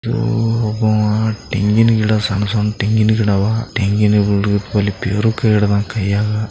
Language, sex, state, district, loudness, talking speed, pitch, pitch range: Kannada, male, Karnataka, Bijapur, -16 LUFS, 100 wpm, 105 Hz, 100-110 Hz